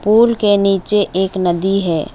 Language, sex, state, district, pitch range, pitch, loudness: Hindi, female, West Bengal, Alipurduar, 185-205 Hz, 195 Hz, -14 LUFS